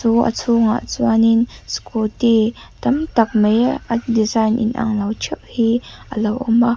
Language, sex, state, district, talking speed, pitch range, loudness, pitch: Mizo, female, Mizoram, Aizawl, 150 wpm, 220-235 Hz, -18 LUFS, 230 Hz